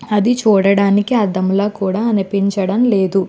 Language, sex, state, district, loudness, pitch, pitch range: Telugu, female, Andhra Pradesh, Chittoor, -15 LUFS, 200 Hz, 195-215 Hz